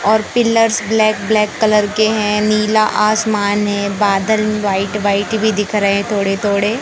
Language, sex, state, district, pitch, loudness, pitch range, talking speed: Hindi, male, Madhya Pradesh, Katni, 210 Hz, -15 LUFS, 205-220 Hz, 165 wpm